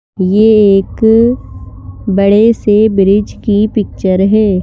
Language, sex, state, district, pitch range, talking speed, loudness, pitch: Hindi, female, Madhya Pradesh, Bhopal, 190-215 Hz, 105 wpm, -10 LUFS, 205 Hz